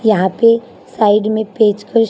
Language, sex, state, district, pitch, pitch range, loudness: Hindi, female, Haryana, Charkhi Dadri, 215 Hz, 210-230 Hz, -14 LUFS